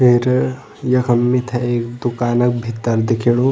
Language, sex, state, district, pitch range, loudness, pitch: Garhwali, male, Uttarakhand, Tehri Garhwal, 120-125 Hz, -17 LUFS, 120 Hz